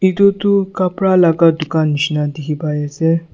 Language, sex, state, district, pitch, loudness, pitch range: Nagamese, male, Nagaland, Dimapur, 165 Hz, -15 LUFS, 150-190 Hz